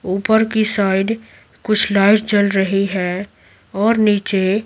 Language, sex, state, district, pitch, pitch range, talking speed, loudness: Hindi, female, Bihar, Patna, 205 Hz, 195-215 Hz, 140 wpm, -16 LUFS